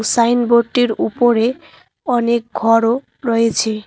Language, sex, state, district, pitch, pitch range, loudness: Bengali, female, West Bengal, Cooch Behar, 235 Hz, 230-245 Hz, -16 LUFS